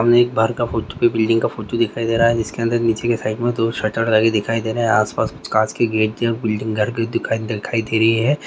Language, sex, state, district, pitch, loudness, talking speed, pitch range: Hindi, male, Uttar Pradesh, Gorakhpur, 115 Hz, -19 LUFS, 275 wpm, 110-115 Hz